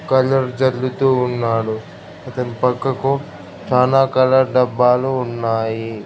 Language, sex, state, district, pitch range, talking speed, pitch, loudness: Telugu, male, Andhra Pradesh, Krishna, 120-135 Hz, 90 wpm, 125 Hz, -17 LUFS